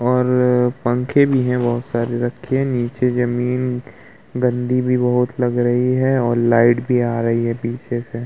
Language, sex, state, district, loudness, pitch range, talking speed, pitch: Hindi, male, Uttar Pradesh, Muzaffarnagar, -18 LUFS, 120-125 Hz, 165 wpm, 125 Hz